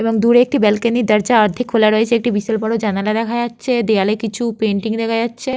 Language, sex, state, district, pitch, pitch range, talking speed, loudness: Bengali, female, West Bengal, Jhargram, 225 Hz, 215-235 Hz, 215 wpm, -16 LUFS